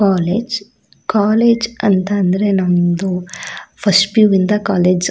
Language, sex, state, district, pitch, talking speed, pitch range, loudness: Kannada, female, Karnataka, Shimoga, 200 Hz, 115 wpm, 180-210 Hz, -15 LUFS